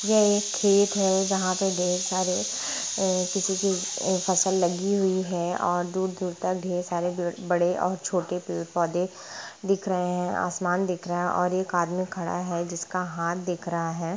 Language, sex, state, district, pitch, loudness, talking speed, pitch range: Hindi, female, Bihar, Gopalganj, 180 Hz, -26 LUFS, 190 wpm, 175-190 Hz